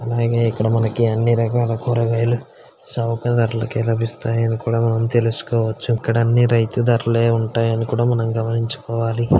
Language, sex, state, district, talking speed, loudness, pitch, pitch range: Telugu, male, Telangana, Karimnagar, 135 wpm, -19 LUFS, 115 Hz, 115-120 Hz